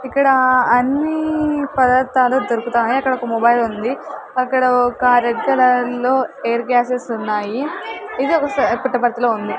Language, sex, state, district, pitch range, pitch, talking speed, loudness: Telugu, female, Andhra Pradesh, Sri Satya Sai, 240-270 Hz, 255 Hz, 120 wpm, -17 LUFS